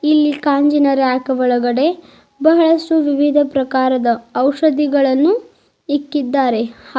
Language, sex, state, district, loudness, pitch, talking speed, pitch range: Kannada, female, Karnataka, Bidar, -15 LUFS, 285 Hz, 95 wpm, 260-300 Hz